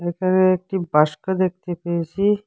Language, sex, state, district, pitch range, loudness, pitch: Bengali, female, Assam, Hailakandi, 170-190 Hz, -20 LUFS, 185 Hz